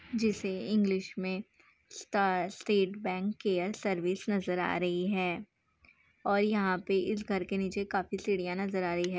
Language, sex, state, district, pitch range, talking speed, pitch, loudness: Hindi, female, Bihar, Saharsa, 185-205 Hz, 165 wpm, 195 Hz, -32 LUFS